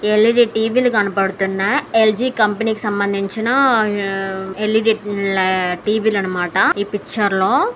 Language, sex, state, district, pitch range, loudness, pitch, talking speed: Telugu, female, Andhra Pradesh, Anantapur, 195-225 Hz, -17 LUFS, 210 Hz, 140 wpm